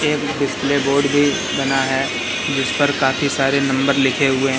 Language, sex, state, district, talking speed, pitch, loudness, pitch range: Hindi, male, Madhya Pradesh, Katni, 170 wpm, 140 Hz, -17 LUFS, 135-145 Hz